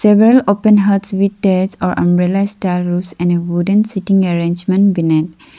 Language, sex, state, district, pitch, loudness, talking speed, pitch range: English, female, Arunachal Pradesh, Lower Dibang Valley, 190 Hz, -14 LUFS, 160 wpm, 175-200 Hz